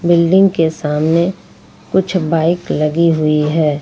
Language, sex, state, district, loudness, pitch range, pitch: Hindi, female, Jharkhand, Ranchi, -14 LUFS, 155-175 Hz, 165 Hz